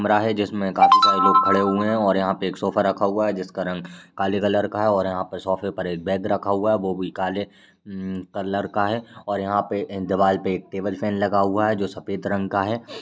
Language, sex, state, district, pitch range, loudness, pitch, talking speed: Hindi, male, Uttar Pradesh, Ghazipur, 95-105 Hz, -22 LUFS, 100 Hz, 260 wpm